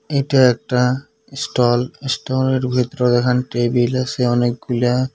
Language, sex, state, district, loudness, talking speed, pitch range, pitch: Bengali, male, West Bengal, Cooch Behar, -18 LUFS, 105 wpm, 120-130 Hz, 125 Hz